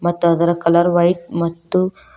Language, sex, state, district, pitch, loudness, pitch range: Kannada, female, Karnataka, Koppal, 175 Hz, -17 LUFS, 170-175 Hz